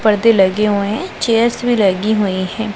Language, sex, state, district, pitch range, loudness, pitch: Hindi, female, Punjab, Pathankot, 200-225 Hz, -15 LUFS, 210 Hz